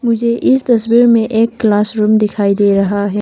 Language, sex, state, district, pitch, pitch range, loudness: Hindi, female, Arunachal Pradesh, Papum Pare, 220 Hz, 205-235 Hz, -12 LUFS